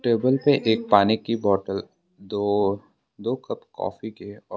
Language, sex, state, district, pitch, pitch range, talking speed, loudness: Hindi, male, Assam, Sonitpur, 105 Hz, 100-115 Hz, 170 wpm, -23 LUFS